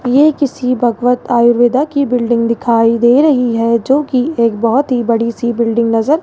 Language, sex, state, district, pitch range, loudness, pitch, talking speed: Hindi, male, Rajasthan, Jaipur, 230-270 Hz, -13 LUFS, 240 Hz, 185 wpm